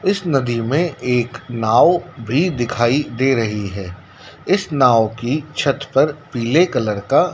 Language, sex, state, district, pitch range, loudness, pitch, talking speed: Hindi, male, Madhya Pradesh, Dhar, 115-150 Hz, -18 LUFS, 125 Hz, 145 wpm